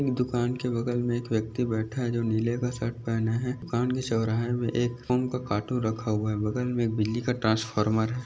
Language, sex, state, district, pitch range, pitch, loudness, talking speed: Hindi, male, Maharashtra, Aurangabad, 110-125 Hz, 120 Hz, -28 LUFS, 225 wpm